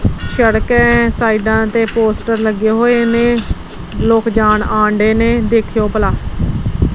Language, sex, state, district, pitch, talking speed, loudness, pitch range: Punjabi, female, Punjab, Kapurthala, 225 Hz, 120 wpm, -13 LUFS, 220-235 Hz